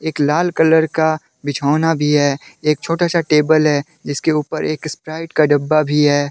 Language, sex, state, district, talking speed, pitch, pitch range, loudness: Hindi, male, Jharkhand, Deoghar, 180 wpm, 155 Hz, 145-160 Hz, -16 LUFS